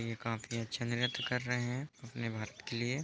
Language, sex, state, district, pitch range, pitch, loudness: Hindi, male, Bihar, East Champaran, 115-125 Hz, 120 Hz, -37 LUFS